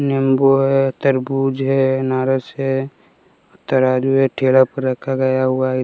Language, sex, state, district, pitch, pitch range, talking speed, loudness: Hindi, male, Bihar, West Champaran, 135 Hz, 130-135 Hz, 145 wpm, -17 LUFS